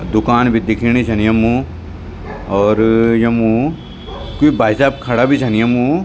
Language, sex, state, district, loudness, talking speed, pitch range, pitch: Garhwali, male, Uttarakhand, Tehri Garhwal, -14 LUFS, 140 wpm, 110-120 Hz, 115 Hz